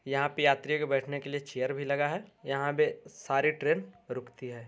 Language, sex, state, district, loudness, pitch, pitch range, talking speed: Hindi, male, Bihar, Darbhanga, -31 LUFS, 140 Hz, 135-145 Hz, 220 wpm